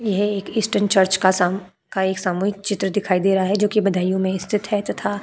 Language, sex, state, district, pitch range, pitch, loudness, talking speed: Hindi, female, Uttar Pradesh, Budaun, 190-205 Hz, 195 Hz, -20 LUFS, 240 wpm